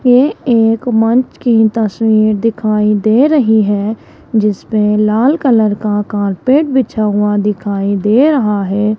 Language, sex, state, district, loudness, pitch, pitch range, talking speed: Hindi, female, Rajasthan, Jaipur, -12 LUFS, 215 Hz, 210-240 Hz, 140 wpm